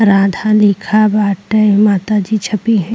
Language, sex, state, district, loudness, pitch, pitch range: Bhojpuri, female, Uttar Pradesh, Deoria, -12 LUFS, 210 Hz, 200-215 Hz